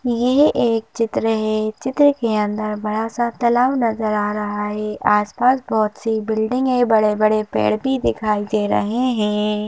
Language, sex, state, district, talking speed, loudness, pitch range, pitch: Hindi, female, Madhya Pradesh, Bhopal, 160 wpm, -19 LUFS, 210-240 Hz, 220 Hz